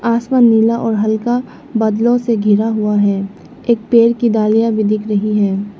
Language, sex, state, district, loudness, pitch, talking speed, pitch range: Hindi, female, Arunachal Pradesh, Lower Dibang Valley, -14 LUFS, 220 Hz, 175 wpm, 210-235 Hz